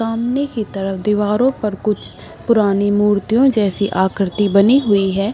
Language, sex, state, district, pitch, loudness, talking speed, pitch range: Hindi, female, Bihar, Saharsa, 210 Hz, -16 LUFS, 145 wpm, 200-225 Hz